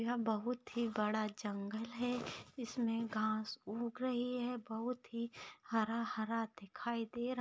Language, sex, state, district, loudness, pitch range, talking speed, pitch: Hindi, female, Maharashtra, Aurangabad, -40 LUFS, 220-245 Hz, 155 wpm, 230 Hz